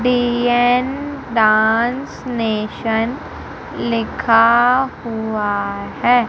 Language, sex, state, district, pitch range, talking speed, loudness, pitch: Hindi, female, Madhya Pradesh, Umaria, 220-245 Hz, 50 wpm, -17 LUFS, 235 Hz